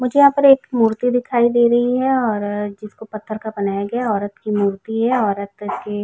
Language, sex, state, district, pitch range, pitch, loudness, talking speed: Hindi, female, Uttar Pradesh, Jalaun, 205-245 Hz, 220 Hz, -18 LUFS, 240 wpm